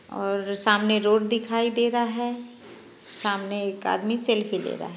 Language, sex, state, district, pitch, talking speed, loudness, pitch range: Hindi, female, Bihar, Muzaffarpur, 215 Hz, 170 wpm, -24 LUFS, 200-235 Hz